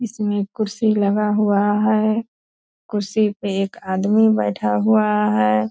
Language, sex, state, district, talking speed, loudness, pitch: Hindi, female, Bihar, Purnia, 125 wpm, -19 LUFS, 205 Hz